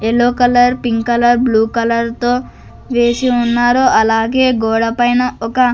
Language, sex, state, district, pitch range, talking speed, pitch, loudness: Telugu, female, Andhra Pradesh, Sri Satya Sai, 230-245 Hz, 135 wpm, 240 Hz, -13 LUFS